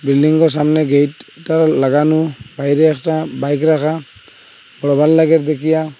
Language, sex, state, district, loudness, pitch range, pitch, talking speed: Bengali, male, Assam, Hailakandi, -14 LUFS, 140-160 Hz, 155 Hz, 110 wpm